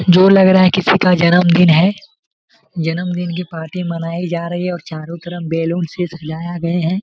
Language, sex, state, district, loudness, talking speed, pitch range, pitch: Hindi, male, Jharkhand, Jamtara, -15 LUFS, 190 wpm, 170-180 Hz, 175 Hz